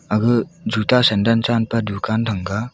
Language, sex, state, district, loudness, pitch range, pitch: Wancho, female, Arunachal Pradesh, Longding, -18 LUFS, 105-115 Hz, 110 Hz